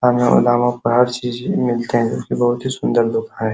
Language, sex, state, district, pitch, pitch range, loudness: Hindi, male, Uttar Pradesh, Hamirpur, 120 Hz, 120-125 Hz, -17 LUFS